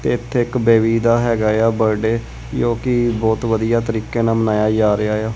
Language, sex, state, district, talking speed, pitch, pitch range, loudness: Punjabi, male, Punjab, Kapurthala, 180 wpm, 115 Hz, 110-115 Hz, -17 LUFS